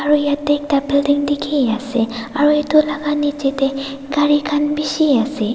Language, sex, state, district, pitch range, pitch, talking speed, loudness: Nagamese, female, Nagaland, Dimapur, 275-295 Hz, 290 Hz, 160 wpm, -17 LUFS